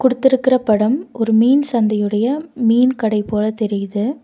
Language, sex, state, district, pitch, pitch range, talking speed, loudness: Tamil, female, Tamil Nadu, Nilgiris, 230 Hz, 215-260 Hz, 130 wpm, -16 LUFS